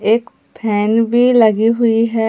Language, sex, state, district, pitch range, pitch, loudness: Hindi, female, Bihar, Katihar, 220-235 Hz, 225 Hz, -14 LUFS